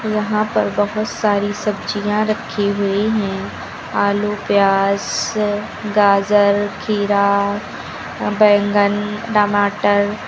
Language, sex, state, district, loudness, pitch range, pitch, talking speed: Hindi, female, Uttar Pradesh, Lucknow, -17 LUFS, 200-210 Hz, 205 Hz, 90 wpm